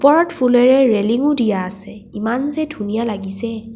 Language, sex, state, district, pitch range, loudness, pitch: Assamese, female, Assam, Kamrup Metropolitan, 210-265 Hz, -17 LUFS, 230 Hz